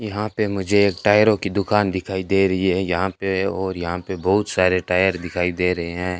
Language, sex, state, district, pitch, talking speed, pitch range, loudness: Hindi, male, Rajasthan, Bikaner, 95 Hz, 225 wpm, 90-100 Hz, -20 LUFS